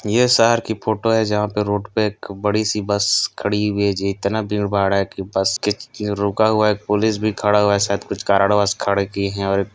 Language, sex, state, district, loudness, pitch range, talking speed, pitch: Hindi, male, Chhattisgarh, Kabirdham, -19 LUFS, 100-105 Hz, 250 wpm, 105 Hz